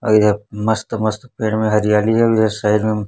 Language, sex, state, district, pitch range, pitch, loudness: Hindi, male, Chhattisgarh, Raipur, 105-110 Hz, 110 Hz, -17 LUFS